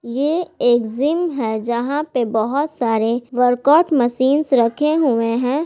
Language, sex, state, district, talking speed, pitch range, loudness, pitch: Hindi, female, Bihar, Gaya, 150 wpm, 235-295 Hz, -18 LUFS, 250 Hz